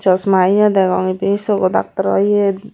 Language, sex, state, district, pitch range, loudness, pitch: Chakma, female, Tripura, Unakoti, 185-205 Hz, -15 LUFS, 195 Hz